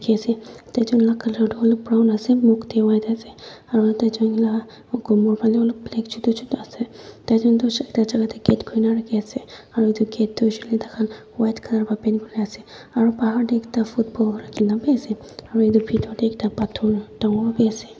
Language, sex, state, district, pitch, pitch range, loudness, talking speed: Nagamese, female, Nagaland, Dimapur, 225 Hz, 220-230 Hz, -21 LUFS, 215 wpm